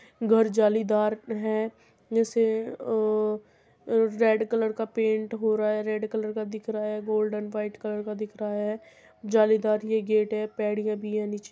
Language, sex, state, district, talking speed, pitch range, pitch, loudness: Hindi, female, Uttar Pradesh, Muzaffarnagar, 170 wpm, 215-220 Hz, 215 Hz, -27 LUFS